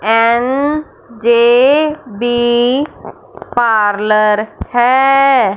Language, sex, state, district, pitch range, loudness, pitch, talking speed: Hindi, female, Punjab, Fazilka, 225-270 Hz, -12 LUFS, 240 Hz, 55 wpm